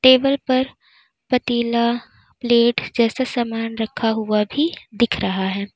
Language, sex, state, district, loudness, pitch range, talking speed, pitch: Hindi, female, Uttar Pradesh, Lalitpur, -20 LUFS, 225-255 Hz, 125 wpm, 235 Hz